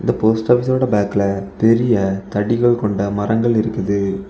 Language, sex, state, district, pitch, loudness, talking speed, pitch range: Tamil, male, Tamil Nadu, Kanyakumari, 105 Hz, -17 LUFS, 110 wpm, 100-115 Hz